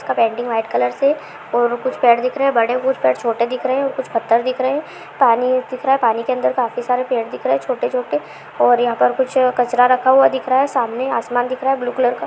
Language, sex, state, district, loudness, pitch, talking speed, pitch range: Hindi, female, Bihar, Supaul, -17 LUFS, 250 Hz, 285 wpm, 235-260 Hz